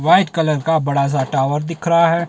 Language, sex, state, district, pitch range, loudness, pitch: Hindi, male, Himachal Pradesh, Shimla, 140-170 Hz, -17 LUFS, 160 Hz